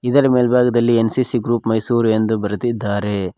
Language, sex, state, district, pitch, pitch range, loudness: Kannada, male, Karnataka, Koppal, 115 Hz, 110-125 Hz, -17 LUFS